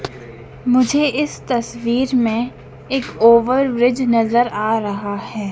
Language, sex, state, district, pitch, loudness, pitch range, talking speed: Hindi, female, Madhya Pradesh, Dhar, 240 Hz, -17 LUFS, 225-255 Hz, 120 wpm